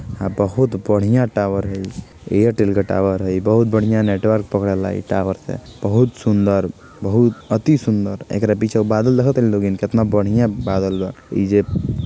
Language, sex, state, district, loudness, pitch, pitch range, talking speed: Bhojpuri, male, Bihar, Gopalganj, -18 LUFS, 105 Hz, 100-115 Hz, 170 wpm